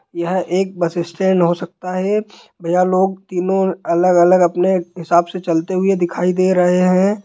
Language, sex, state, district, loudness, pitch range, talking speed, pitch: Hindi, male, Bihar, Jahanabad, -16 LUFS, 175-190 Hz, 165 wpm, 180 Hz